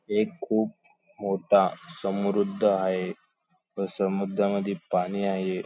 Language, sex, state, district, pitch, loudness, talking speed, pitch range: Marathi, male, Maharashtra, Sindhudurg, 100 Hz, -27 LUFS, 95 wpm, 95-100 Hz